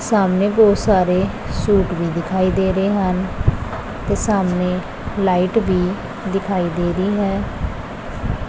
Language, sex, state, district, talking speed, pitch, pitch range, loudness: Punjabi, female, Punjab, Pathankot, 120 wpm, 190 Hz, 180-200 Hz, -19 LUFS